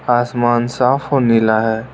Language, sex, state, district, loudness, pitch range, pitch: Hindi, male, Arunachal Pradesh, Lower Dibang Valley, -15 LUFS, 115-125 Hz, 120 Hz